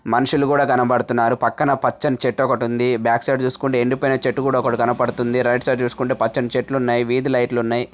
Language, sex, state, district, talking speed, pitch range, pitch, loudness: Telugu, male, Telangana, Nalgonda, 190 wpm, 120-130 Hz, 125 Hz, -19 LUFS